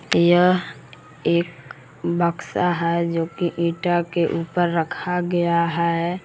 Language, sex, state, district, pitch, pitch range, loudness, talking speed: Hindi, male, Jharkhand, Palamu, 170 Hz, 170-175 Hz, -21 LUFS, 105 wpm